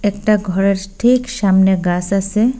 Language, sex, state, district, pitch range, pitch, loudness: Bengali, female, Assam, Hailakandi, 190-215 Hz, 195 Hz, -15 LUFS